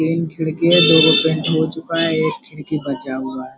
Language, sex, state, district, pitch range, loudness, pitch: Hindi, male, Bihar, Araria, 150-160 Hz, -16 LUFS, 160 Hz